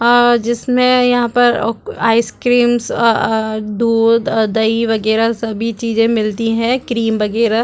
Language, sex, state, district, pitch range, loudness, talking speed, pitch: Hindi, female, Chhattisgarh, Rajnandgaon, 225-240 Hz, -14 LUFS, 135 wpm, 230 Hz